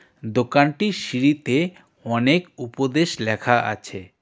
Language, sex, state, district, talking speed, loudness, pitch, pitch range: Bengali, male, West Bengal, Darjeeling, 85 wpm, -21 LUFS, 130 Hz, 115-155 Hz